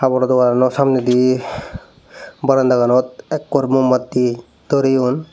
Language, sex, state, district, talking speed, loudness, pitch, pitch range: Chakma, male, Tripura, Dhalai, 80 wpm, -16 LUFS, 130 Hz, 125-135 Hz